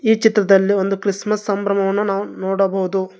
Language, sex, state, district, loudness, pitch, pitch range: Kannada, male, Karnataka, Bangalore, -18 LUFS, 200 Hz, 195-205 Hz